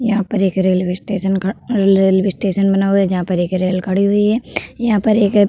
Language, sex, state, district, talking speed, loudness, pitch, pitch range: Hindi, female, Uttar Pradesh, Hamirpur, 240 wpm, -16 LUFS, 195 Hz, 190-205 Hz